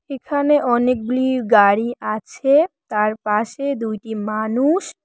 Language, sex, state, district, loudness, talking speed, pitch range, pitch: Bengali, female, West Bengal, Cooch Behar, -19 LUFS, 95 wpm, 215-280 Hz, 245 Hz